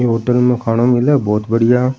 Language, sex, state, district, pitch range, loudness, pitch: Rajasthani, male, Rajasthan, Churu, 115-125 Hz, -14 LUFS, 120 Hz